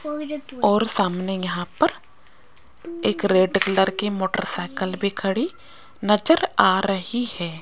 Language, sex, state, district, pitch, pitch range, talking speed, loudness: Hindi, female, Rajasthan, Jaipur, 200 Hz, 190-265 Hz, 125 wpm, -22 LUFS